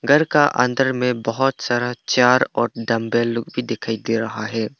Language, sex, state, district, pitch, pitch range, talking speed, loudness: Hindi, male, Arunachal Pradesh, Papum Pare, 120 Hz, 115-130 Hz, 190 wpm, -19 LUFS